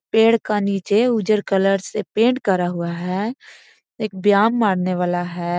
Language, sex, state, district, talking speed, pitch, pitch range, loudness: Magahi, female, Bihar, Gaya, 160 wpm, 200 Hz, 180-215 Hz, -19 LUFS